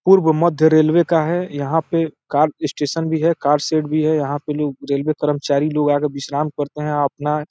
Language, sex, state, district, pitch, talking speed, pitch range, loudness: Hindi, male, Uttar Pradesh, Deoria, 150 Hz, 215 wpm, 145-160 Hz, -18 LUFS